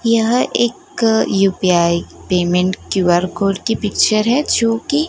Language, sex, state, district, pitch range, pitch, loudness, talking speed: Hindi, female, Gujarat, Gandhinagar, 185-230 Hz, 215 Hz, -16 LUFS, 130 wpm